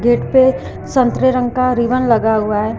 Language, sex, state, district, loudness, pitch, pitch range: Hindi, female, Uttar Pradesh, Lucknow, -14 LUFS, 245 Hz, 225-255 Hz